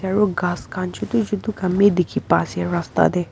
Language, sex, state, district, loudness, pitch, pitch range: Nagamese, female, Nagaland, Kohima, -20 LUFS, 180 Hz, 160-200 Hz